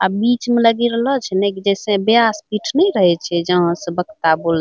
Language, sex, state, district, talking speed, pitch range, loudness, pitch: Angika, female, Bihar, Bhagalpur, 235 wpm, 180-230 Hz, -16 LUFS, 200 Hz